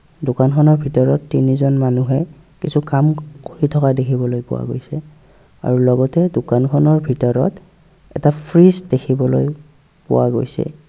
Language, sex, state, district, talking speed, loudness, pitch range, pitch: Assamese, male, Assam, Kamrup Metropolitan, 120 wpm, -16 LUFS, 130-155 Hz, 145 Hz